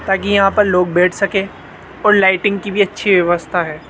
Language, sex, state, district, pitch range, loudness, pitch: Hindi, male, Rajasthan, Jaipur, 180-200 Hz, -14 LUFS, 195 Hz